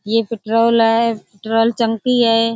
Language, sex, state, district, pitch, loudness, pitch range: Hindi, female, Uttar Pradesh, Budaun, 230 Hz, -16 LUFS, 225-230 Hz